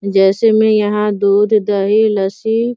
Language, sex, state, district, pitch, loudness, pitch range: Hindi, female, Bihar, Sitamarhi, 210 Hz, -13 LUFS, 200-220 Hz